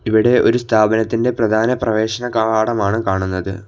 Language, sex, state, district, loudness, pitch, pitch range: Malayalam, male, Kerala, Kollam, -16 LUFS, 110 Hz, 110-115 Hz